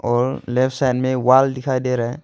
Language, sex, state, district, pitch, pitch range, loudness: Hindi, male, Arunachal Pradesh, Longding, 130 Hz, 125-130 Hz, -18 LUFS